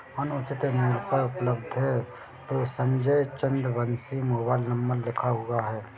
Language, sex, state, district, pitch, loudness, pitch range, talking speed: Hindi, male, Chhattisgarh, Bilaspur, 125 Hz, -28 LUFS, 120-135 Hz, 120 wpm